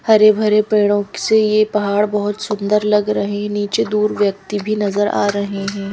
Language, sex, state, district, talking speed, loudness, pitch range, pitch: Hindi, female, Madhya Pradesh, Bhopal, 180 wpm, -16 LUFS, 205-215 Hz, 210 Hz